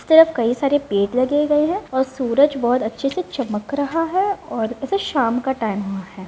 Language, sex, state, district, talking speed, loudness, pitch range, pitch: Hindi, female, Bihar, Jamui, 220 wpm, -20 LUFS, 225-295 Hz, 265 Hz